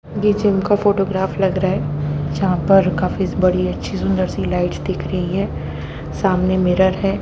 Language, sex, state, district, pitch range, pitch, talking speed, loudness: Hindi, female, Haryana, Jhajjar, 145-195 Hz, 185 Hz, 185 wpm, -18 LUFS